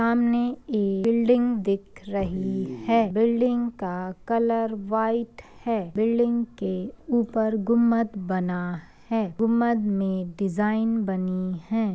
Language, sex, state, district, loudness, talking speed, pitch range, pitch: Hindi, female, Uttar Pradesh, Ghazipur, -25 LUFS, 110 wpm, 195-230 Hz, 220 Hz